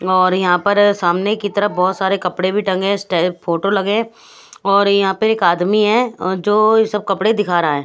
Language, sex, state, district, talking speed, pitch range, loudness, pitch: Hindi, female, Haryana, Rohtak, 205 wpm, 185-210 Hz, -16 LUFS, 195 Hz